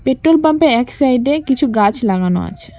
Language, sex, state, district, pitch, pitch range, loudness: Bengali, female, West Bengal, Cooch Behar, 260 Hz, 200-295 Hz, -14 LUFS